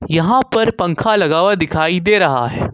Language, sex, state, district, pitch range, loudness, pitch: Hindi, male, Jharkhand, Ranchi, 165-225 Hz, -14 LUFS, 200 Hz